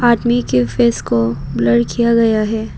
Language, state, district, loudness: Hindi, Arunachal Pradesh, Papum Pare, -15 LUFS